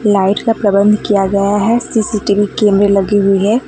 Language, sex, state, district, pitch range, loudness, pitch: Hindi, female, West Bengal, Alipurduar, 200-215 Hz, -12 LUFS, 205 Hz